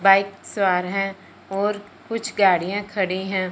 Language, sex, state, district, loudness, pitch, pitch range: Hindi, male, Punjab, Fazilka, -22 LUFS, 195 Hz, 190-205 Hz